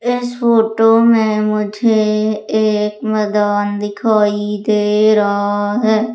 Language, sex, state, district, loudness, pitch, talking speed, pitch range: Hindi, female, Madhya Pradesh, Umaria, -14 LUFS, 215 Hz, 95 wpm, 210-225 Hz